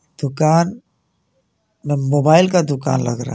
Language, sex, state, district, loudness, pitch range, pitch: Hindi, male, Jharkhand, Garhwa, -16 LUFS, 135-165 Hz, 145 Hz